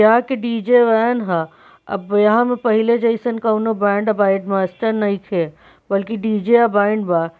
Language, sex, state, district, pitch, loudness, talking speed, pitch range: Bhojpuri, female, Bihar, Saran, 215 Hz, -17 LUFS, 155 wpm, 200-230 Hz